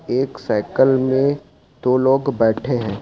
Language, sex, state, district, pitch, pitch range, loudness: Hindi, male, Uttarakhand, Uttarkashi, 130 Hz, 125-135 Hz, -18 LUFS